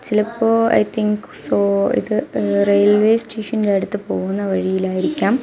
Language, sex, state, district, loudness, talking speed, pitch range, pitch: Malayalam, female, Kerala, Kasaragod, -18 LUFS, 120 wpm, 200-225 Hz, 210 Hz